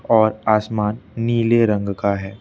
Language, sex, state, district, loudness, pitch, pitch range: Hindi, male, Madhya Pradesh, Bhopal, -19 LUFS, 110 Hz, 100-115 Hz